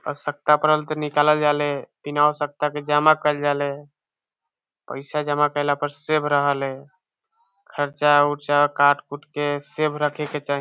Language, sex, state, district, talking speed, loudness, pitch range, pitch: Bhojpuri, male, Bihar, Saran, 145 wpm, -21 LUFS, 145-150 Hz, 145 Hz